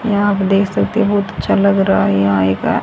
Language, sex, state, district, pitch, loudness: Hindi, female, Haryana, Rohtak, 190 Hz, -14 LUFS